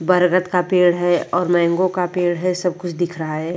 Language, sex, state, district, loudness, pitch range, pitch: Hindi, female, Bihar, Vaishali, -18 LUFS, 175-180 Hz, 175 Hz